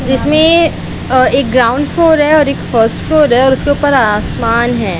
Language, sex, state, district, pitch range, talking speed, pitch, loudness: Hindi, female, Chhattisgarh, Raipur, 235-300 Hz, 180 wpm, 265 Hz, -11 LUFS